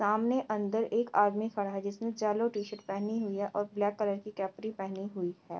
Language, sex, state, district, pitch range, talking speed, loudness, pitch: Hindi, female, Bihar, Kishanganj, 200-220 Hz, 215 wpm, -33 LUFS, 205 Hz